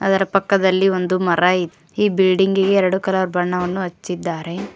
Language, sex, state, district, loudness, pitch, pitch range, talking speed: Kannada, female, Karnataka, Koppal, -18 LUFS, 185 Hz, 180-195 Hz, 150 wpm